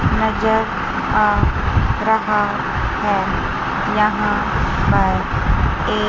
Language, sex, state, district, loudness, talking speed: Hindi, female, Chandigarh, Chandigarh, -18 LUFS, 70 wpm